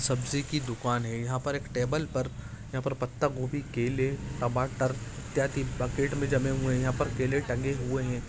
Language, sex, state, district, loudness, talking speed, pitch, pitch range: Hindi, male, Jharkhand, Sahebganj, -30 LUFS, 190 wpm, 130 Hz, 125-140 Hz